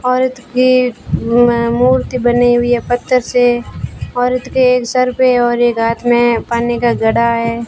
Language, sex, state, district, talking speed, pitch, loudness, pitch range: Hindi, female, Rajasthan, Bikaner, 170 wpm, 240 Hz, -13 LUFS, 235-250 Hz